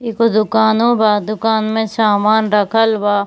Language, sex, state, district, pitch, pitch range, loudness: Hindi, female, Bihar, Kishanganj, 220 Hz, 210-225 Hz, -14 LUFS